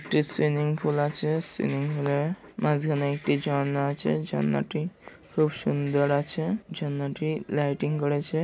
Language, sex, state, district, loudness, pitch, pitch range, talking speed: Bengali, male, West Bengal, Malda, -26 LUFS, 145 Hz, 140-155 Hz, 120 wpm